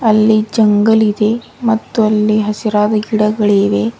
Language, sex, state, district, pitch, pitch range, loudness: Kannada, female, Karnataka, Bidar, 215 Hz, 210-220 Hz, -13 LUFS